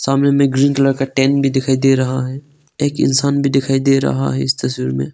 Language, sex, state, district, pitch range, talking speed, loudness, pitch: Hindi, male, Arunachal Pradesh, Longding, 130-140 Hz, 245 wpm, -16 LUFS, 135 Hz